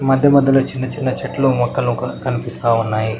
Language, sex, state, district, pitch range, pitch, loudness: Telugu, male, Telangana, Mahabubabad, 120-135 Hz, 130 Hz, -17 LUFS